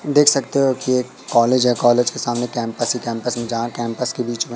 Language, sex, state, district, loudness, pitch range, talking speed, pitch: Hindi, male, Madhya Pradesh, Katni, -19 LUFS, 120-130 Hz, 250 wpm, 120 Hz